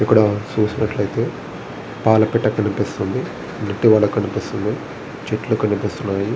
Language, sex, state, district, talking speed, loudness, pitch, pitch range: Telugu, male, Andhra Pradesh, Visakhapatnam, 65 wpm, -19 LUFS, 105 Hz, 100-110 Hz